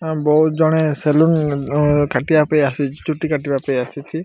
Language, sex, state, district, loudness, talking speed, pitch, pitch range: Odia, male, Odisha, Malkangiri, -17 LUFS, 115 wpm, 150 Hz, 140-155 Hz